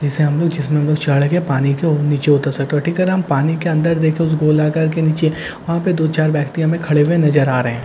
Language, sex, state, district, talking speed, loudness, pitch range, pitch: Hindi, male, Bihar, Katihar, 300 wpm, -16 LUFS, 145-165 Hz, 155 Hz